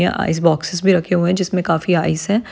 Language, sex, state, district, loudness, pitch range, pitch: Hindi, female, Chhattisgarh, Rajnandgaon, -17 LUFS, 165-185 Hz, 180 Hz